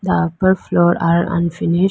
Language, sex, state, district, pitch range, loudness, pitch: English, female, Arunachal Pradesh, Lower Dibang Valley, 170-185 Hz, -16 LUFS, 175 Hz